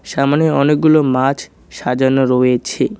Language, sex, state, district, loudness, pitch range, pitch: Bengali, male, West Bengal, Alipurduar, -14 LUFS, 125-150 Hz, 135 Hz